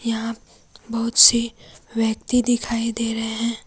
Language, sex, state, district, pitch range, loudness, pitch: Hindi, female, Jharkhand, Deoghar, 225-235 Hz, -19 LUFS, 230 Hz